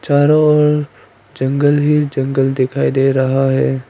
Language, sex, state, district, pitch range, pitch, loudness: Hindi, female, Arunachal Pradesh, Papum Pare, 135-150 Hz, 140 Hz, -14 LUFS